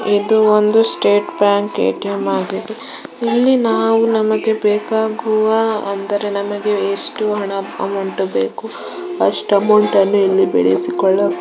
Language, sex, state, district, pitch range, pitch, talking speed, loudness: Kannada, female, Karnataka, Shimoga, 200-220 Hz, 205 Hz, 110 wpm, -16 LUFS